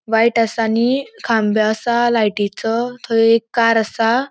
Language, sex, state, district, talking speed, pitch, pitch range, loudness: Konkani, female, Goa, North and South Goa, 140 wpm, 230 Hz, 225-235 Hz, -17 LUFS